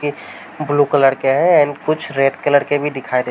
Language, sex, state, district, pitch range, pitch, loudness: Hindi, male, Uttar Pradesh, Varanasi, 135-145 Hz, 145 Hz, -16 LUFS